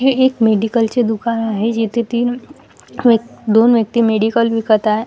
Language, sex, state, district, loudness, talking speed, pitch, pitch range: Marathi, female, Maharashtra, Washim, -15 LUFS, 165 wpm, 230 Hz, 220-240 Hz